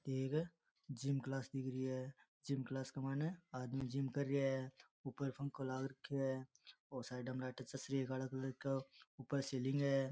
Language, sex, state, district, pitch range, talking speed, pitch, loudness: Rajasthani, male, Rajasthan, Nagaur, 130-140 Hz, 200 wpm, 135 Hz, -44 LUFS